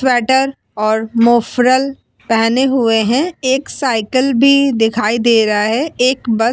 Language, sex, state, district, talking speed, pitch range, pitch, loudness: Hindi, female, Uttar Pradesh, Muzaffarnagar, 145 wpm, 225-265 Hz, 245 Hz, -14 LUFS